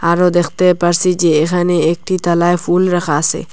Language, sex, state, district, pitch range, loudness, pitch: Bengali, female, Assam, Hailakandi, 170-180 Hz, -14 LUFS, 175 Hz